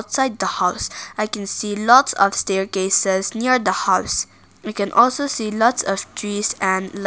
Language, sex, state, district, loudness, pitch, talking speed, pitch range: English, female, Nagaland, Kohima, -19 LUFS, 205 Hz, 170 wpm, 195-235 Hz